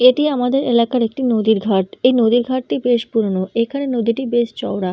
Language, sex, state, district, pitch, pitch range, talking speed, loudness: Bengali, female, West Bengal, North 24 Parganas, 240 Hz, 225-255 Hz, 195 wpm, -17 LUFS